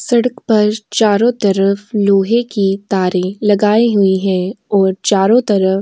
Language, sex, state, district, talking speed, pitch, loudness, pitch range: Hindi, female, Uttar Pradesh, Jyotiba Phule Nagar, 145 wpm, 205 Hz, -14 LUFS, 195-220 Hz